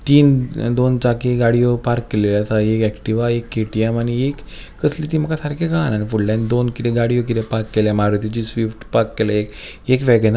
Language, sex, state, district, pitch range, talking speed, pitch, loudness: Konkani, male, Goa, North and South Goa, 110-125 Hz, 195 wpm, 115 Hz, -18 LUFS